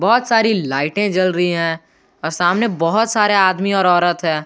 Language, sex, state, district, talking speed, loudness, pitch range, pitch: Hindi, male, Jharkhand, Garhwa, 190 wpm, -16 LUFS, 165-210 Hz, 185 Hz